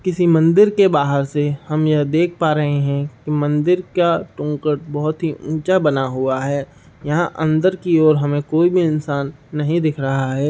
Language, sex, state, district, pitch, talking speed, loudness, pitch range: Hindi, male, Bihar, Saharsa, 150 Hz, 185 wpm, -18 LUFS, 145-165 Hz